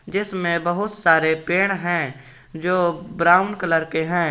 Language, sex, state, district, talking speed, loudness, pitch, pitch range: Hindi, male, Jharkhand, Garhwa, 140 wpm, -20 LUFS, 175 Hz, 160-185 Hz